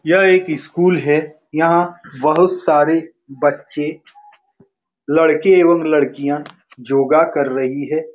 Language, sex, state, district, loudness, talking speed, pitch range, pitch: Hindi, male, Bihar, Saran, -16 LUFS, 110 wpm, 145-175 Hz, 155 Hz